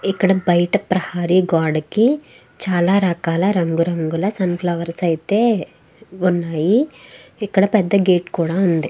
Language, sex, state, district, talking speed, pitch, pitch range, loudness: Telugu, female, Andhra Pradesh, Krishna, 110 wpm, 180 Hz, 170-200 Hz, -18 LUFS